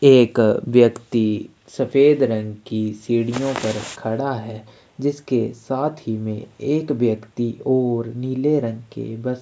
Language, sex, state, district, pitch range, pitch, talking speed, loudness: Hindi, male, Chhattisgarh, Sukma, 110-135 Hz, 120 Hz, 125 wpm, -21 LUFS